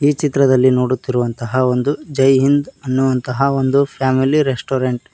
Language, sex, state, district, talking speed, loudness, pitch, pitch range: Kannada, male, Karnataka, Koppal, 130 wpm, -16 LUFS, 130 Hz, 130-140 Hz